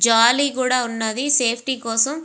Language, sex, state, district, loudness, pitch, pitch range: Telugu, female, Andhra Pradesh, Visakhapatnam, -18 LUFS, 250 Hz, 230-270 Hz